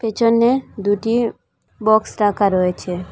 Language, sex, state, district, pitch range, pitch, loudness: Bengali, female, Assam, Hailakandi, 200-230 Hz, 215 Hz, -18 LUFS